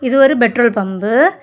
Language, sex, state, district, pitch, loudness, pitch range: Tamil, female, Tamil Nadu, Kanyakumari, 240 Hz, -13 LUFS, 220-270 Hz